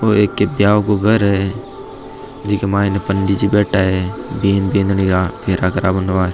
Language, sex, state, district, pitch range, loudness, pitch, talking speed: Marwari, male, Rajasthan, Nagaur, 95-100 Hz, -16 LUFS, 100 Hz, 160 wpm